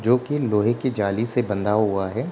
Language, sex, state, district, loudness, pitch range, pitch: Hindi, male, Uttar Pradesh, Ghazipur, -22 LUFS, 105-125 Hz, 110 Hz